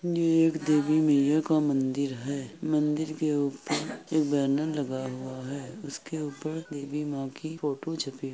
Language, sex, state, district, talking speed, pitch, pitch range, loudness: Hindi, male, Uttar Pradesh, Hamirpur, 165 wpm, 150 Hz, 140-155 Hz, -28 LUFS